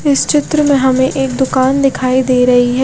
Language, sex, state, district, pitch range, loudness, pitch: Hindi, female, Odisha, Khordha, 255-275 Hz, -12 LUFS, 265 Hz